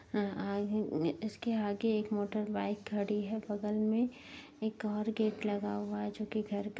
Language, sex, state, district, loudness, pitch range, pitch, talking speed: Hindi, female, Uttar Pradesh, Jyotiba Phule Nagar, -35 LUFS, 205-220 Hz, 210 Hz, 170 wpm